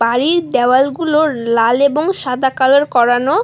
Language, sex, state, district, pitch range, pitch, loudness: Bengali, female, West Bengal, Alipurduar, 245-300 Hz, 265 Hz, -13 LUFS